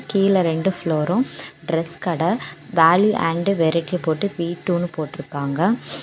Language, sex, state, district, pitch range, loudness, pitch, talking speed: Tamil, female, Tamil Nadu, Kanyakumari, 165-195 Hz, -21 LUFS, 170 Hz, 120 wpm